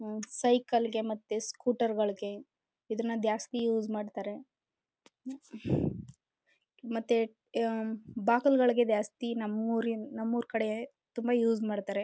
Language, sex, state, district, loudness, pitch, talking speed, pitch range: Kannada, female, Karnataka, Chamarajanagar, -32 LUFS, 225 Hz, 90 wpm, 215-235 Hz